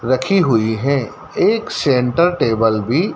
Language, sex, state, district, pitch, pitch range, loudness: Hindi, male, Madhya Pradesh, Dhar, 130 Hz, 115-140 Hz, -16 LUFS